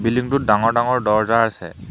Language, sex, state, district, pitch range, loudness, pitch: Assamese, male, Assam, Hailakandi, 105-125 Hz, -18 LUFS, 115 Hz